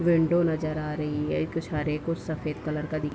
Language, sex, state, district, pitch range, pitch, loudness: Hindi, female, Bihar, Darbhanga, 150-165 Hz, 155 Hz, -28 LUFS